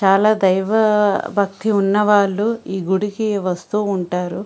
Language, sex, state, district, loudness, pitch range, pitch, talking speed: Telugu, female, Andhra Pradesh, Srikakulam, -18 LUFS, 190-210 Hz, 200 Hz, 110 wpm